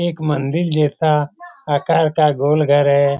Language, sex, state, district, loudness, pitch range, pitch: Hindi, male, Bihar, Lakhisarai, -16 LUFS, 145-160 Hz, 150 Hz